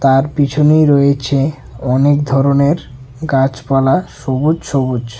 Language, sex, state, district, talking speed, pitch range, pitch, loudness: Bengali, male, Tripura, West Tripura, 90 wpm, 130-145 Hz, 135 Hz, -14 LUFS